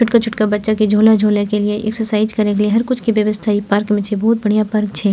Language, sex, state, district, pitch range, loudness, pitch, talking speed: Maithili, female, Bihar, Purnia, 210-220 Hz, -15 LUFS, 215 Hz, 220 wpm